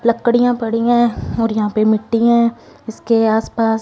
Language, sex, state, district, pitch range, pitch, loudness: Hindi, female, Punjab, Fazilka, 225-235 Hz, 230 Hz, -16 LUFS